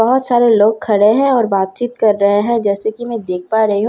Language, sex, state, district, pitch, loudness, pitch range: Hindi, female, Bihar, Katihar, 220 Hz, -14 LUFS, 205-235 Hz